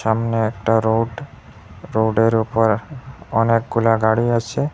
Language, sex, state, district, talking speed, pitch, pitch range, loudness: Bengali, male, Assam, Hailakandi, 100 wpm, 115 Hz, 110-120 Hz, -19 LUFS